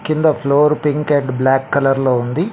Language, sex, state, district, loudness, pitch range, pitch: Telugu, male, Telangana, Mahabubabad, -15 LUFS, 135-150 Hz, 140 Hz